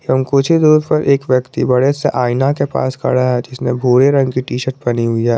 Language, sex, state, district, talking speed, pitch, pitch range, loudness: Hindi, male, Jharkhand, Garhwa, 255 wpm, 130 Hz, 125-140 Hz, -14 LUFS